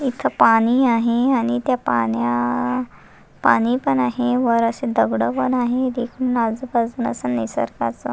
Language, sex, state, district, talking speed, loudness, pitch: Marathi, female, Maharashtra, Nagpur, 120 wpm, -19 LUFS, 225 Hz